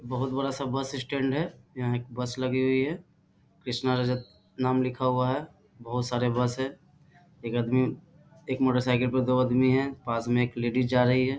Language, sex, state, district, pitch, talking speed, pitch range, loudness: Hindi, male, Bihar, Bhagalpur, 130 Hz, 200 wpm, 125-135 Hz, -28 LUFS